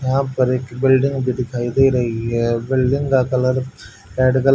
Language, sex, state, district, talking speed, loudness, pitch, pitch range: Hindi, male, Haryana, Jhajjar, 185 wpm, -18 LUFS, 130 Hz, 120-130 Hz